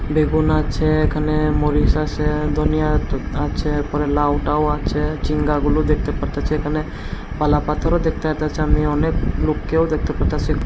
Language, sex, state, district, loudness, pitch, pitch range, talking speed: Bengali, male, Tripura, Unakoti, -20 LUFS, 150 Hz, 150-155 Hz, 135 wpm